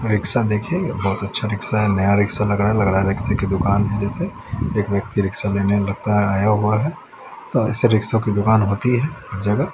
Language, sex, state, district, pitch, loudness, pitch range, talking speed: Hindi, male, Haryana, Rohtak, 105 Hz, -19 LUFS, 100-110 Hz, 215 wpm